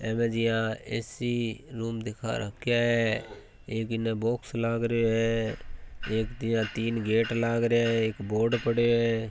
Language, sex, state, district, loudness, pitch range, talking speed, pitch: Marwari, male, Rajasthan, Churu, -28 LUFS, 110-115 Hz, 150 wpm, 115 Hz